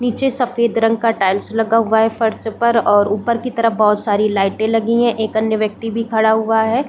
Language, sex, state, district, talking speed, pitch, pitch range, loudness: Hindi, female, Chhattisgarh, Bilaspur, 235 wpm, 225 Hz, 220-230 Hz, -16 LUFS